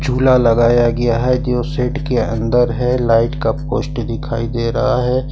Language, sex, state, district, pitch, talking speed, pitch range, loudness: Hindi, male, Jharkhand, Ranchi, 125 Hz, 180 wpm, 115-130 Hz, -16 LUFS